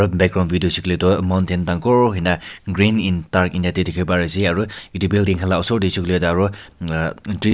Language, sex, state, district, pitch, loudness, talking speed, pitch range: Nagamese, male, Nagaland, Kohima, 95 Hz, -18 LUFS, 200 wpm, 90-100 Hz